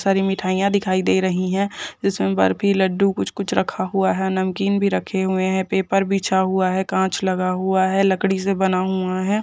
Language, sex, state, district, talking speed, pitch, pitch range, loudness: Hindi, female, Rajasthan, Churu, 210 wpm, 190 Hz, 185-195 Hz, -20 LUFS